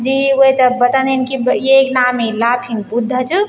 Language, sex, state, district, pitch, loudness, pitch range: Garhwali, female, Uttarakhand, Tehri Garhwal, 255 Hz, -13 LUFS, 245-265 Hz